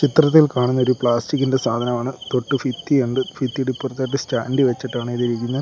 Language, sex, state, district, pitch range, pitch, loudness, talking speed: Malayalam, male, Kerala, Kollam, 120-135 Hz, 130 Hz, -20 LUFS, 150 wpm